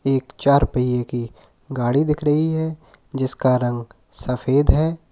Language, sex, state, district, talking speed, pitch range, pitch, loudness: Hindi, male, Uttar Pradesh, Lalitpur, 140 wpm, 125-150 Hz, 135 Hz, -20 LUFS